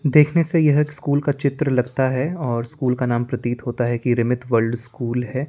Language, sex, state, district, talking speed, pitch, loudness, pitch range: Hindi, male, Chandigarh, Chandigarh, 220 wpm, 125 Hz, -20 LUFS, 120-145 Hz